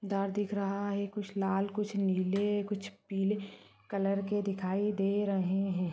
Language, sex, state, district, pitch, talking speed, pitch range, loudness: Hindi, female, Rajasthan, Churu, 200 Hz, 160 wpm, 195-205 Hz, -33 LUFS